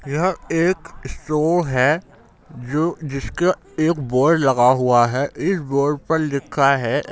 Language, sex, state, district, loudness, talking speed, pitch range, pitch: Hindi, male, Uttar Pradesh, Jyotiba Phule Nagar, -19 LUFS, 145 wpm, 135-165 Hz, 145 Hz